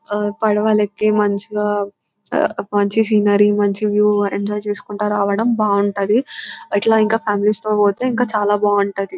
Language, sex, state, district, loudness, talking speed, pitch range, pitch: Telugu, female, Telangana, Nalgonda, -17 LUFS, 125 wpm, 205-215 Hz, 210 Hz